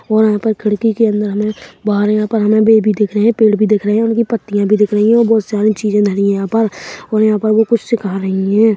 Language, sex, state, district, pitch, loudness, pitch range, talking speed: Hindi, male, Chhattisgarh, Bilaspur, 215 Hz, -14 LUFS, 210-225 Hz, 295 wpm